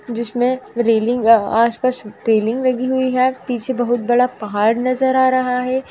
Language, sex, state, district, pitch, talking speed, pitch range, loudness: Hindi, female, Bihar, Purnia, 245 Hz, 160 wpm, 230-255 Hz, -17 LUFS